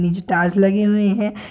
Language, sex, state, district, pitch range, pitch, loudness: Hindi, male, Bihar, Purnia, 180-210 Hz, 195 Hz, -17 LUFS